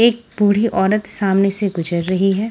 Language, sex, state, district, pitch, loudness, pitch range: Hindi, female, Punjab, Fazilka, 200 Hz, -17 LUFS, 195-215 Hz